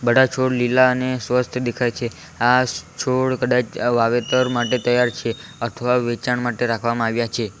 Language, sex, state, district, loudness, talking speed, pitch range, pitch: Gujarati, male, Gujarat, Valsad, -20 LUFS, 165 wpm, 120-125 Hz, 120 Hz